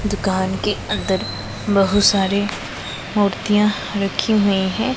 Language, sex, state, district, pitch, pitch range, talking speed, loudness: Hindi, female, Punjab, Pathankot, 200 Hz, 195-210 Hz, 110 wpm, -19 LUFS